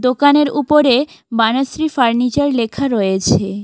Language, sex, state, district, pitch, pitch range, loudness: Bengali, female, West Bengal, Alipurduar, 260 Hz, 230-285 Hz, -15 LUFS